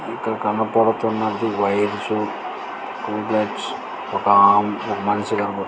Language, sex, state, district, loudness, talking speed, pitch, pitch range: Telugu, male, Andhra Pradesh, Srikakulam, -20 LUFS, 95 wpm, 105 Hz, 100-110 Hz